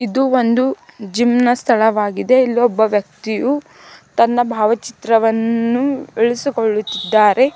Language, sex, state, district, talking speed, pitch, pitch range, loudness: Kannada, female, Karnataka, Bidar, 85 wpm, 235 Hz, 220-255 Hz, -16 LUFS